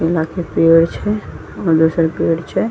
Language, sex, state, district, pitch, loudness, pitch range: Maithili, female, Bihar, Madhepura, 165 Hz, -16 LUFS, 165-180 Hz